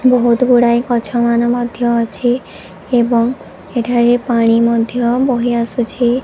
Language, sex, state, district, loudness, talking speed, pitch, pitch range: Odia, female, Odisha, Sambalpur, -14 LUFS, 105 wpm, 240 Hz, 235-245 Hz